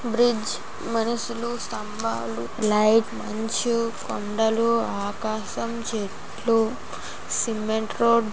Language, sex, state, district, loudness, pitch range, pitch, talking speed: Telugu, female, Andhra Pradesh, Srikakulam, -25 LUFS, 215-230 Hz, 225 Hz, 80 wpm